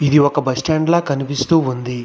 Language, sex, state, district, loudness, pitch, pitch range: Telugu, male, Telangana, Hyderabad, -17 LUFS, 145 Hz, 130-155 Hz